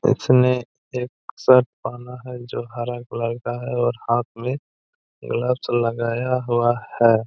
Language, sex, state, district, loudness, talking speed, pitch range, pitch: Hindi, male, Jharkhand, Jamtara, -22 LUFS, 140 wpm, 115-125 Hz, 120 Hz